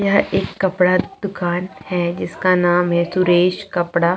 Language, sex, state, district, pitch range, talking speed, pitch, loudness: Hindi, female, Chhattisgarh, Jashpur, 175-190 Hz, 160 wpm, 180 Hz, -18 LUFS